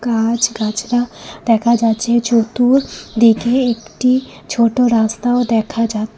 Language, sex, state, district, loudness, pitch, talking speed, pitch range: Bengali, female, Tripura, West Tripura, -15 LUFS, 235 Hz, 95 wpm, 225-245 Hz